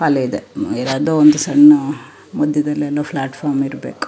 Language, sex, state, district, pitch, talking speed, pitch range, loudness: Kannada, female, Karnataka, Shimoga, 150 Hz, 120 wpm, 135-155 Hz, -16 LUFS